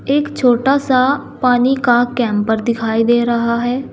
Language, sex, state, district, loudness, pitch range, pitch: Hindi, female, Uttar Pradesh, Saharanpur, -15 LUFS, 235-265 Hz, 245 Hz